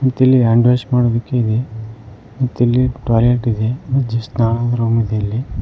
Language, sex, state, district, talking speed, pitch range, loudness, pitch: Kannada, male, Karnataka, Koppal, 130 wpm, 115-125 Hz, -16 LUFS, 120 Hz